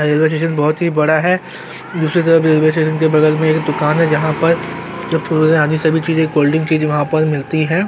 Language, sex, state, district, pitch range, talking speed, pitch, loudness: Hindi, male, Chhattisgarh, Korba, 155-160 Hz, 200 wpm, 155 Hz, -14 LUFS